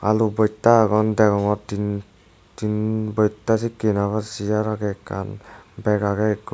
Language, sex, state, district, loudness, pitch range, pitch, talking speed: Chakma, male, Tripura, West Tripura, -21 LUFS, 100-110 Hz, 105 Hz, 145 wpm